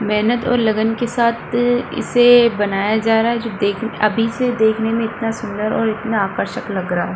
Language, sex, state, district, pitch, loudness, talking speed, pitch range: Hindi, female, Bihar, Kishanganj, 225 Hz, -17 LUFS, 200 wpm, 215-235 Hz